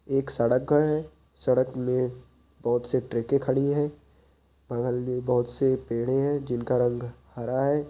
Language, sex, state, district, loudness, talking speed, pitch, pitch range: Hindi, male, Chhattisgarh, Balrampur, -27 LUFS, 160 wpm, 125 Hz, 120-135 Hz